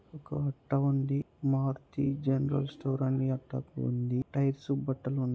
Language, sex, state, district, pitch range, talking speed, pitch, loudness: Telugu, male, Andhra Pradesh, Anantapur, 130-140 Hz, 145 wpm, 135 Hz, -32 LUFS